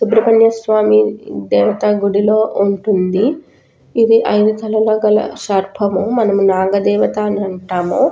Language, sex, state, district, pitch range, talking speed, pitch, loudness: Telugu, female, Telangana, Nalgonda, 195-220 Hz, 110 wpm, 210 Hz, -14 LUFS